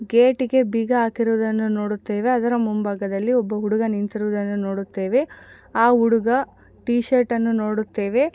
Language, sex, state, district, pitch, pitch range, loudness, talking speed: Kannada, female, Karnataka, Gulbarga, 225 Hz, 210-240 Hz, -21 LUFS, 120 wpm